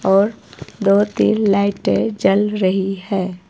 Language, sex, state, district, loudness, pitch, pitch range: Hindi, female, Himachal Pradesh, Shimla, -17 LUFS, 200 Hz, 190-210 Hz